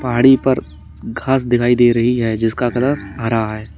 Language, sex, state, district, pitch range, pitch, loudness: Hindi, male, Uttar Pradesh, Lalitpur, 115-130 Hz, 120 Hz, -16 LUFS